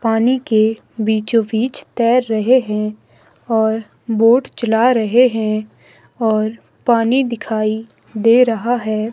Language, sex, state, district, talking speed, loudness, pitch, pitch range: Hindi, female, Himachal Pradesh, Shimla, 120 wpm, -16 LUFS, 225 Hz, 220-240 Hz